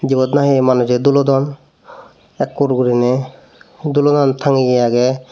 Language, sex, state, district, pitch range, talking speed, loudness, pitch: Chakma, male, Tripura, Dhalai, 125-140 Hz, 100 wpm, -15 LUFS, 135 Hz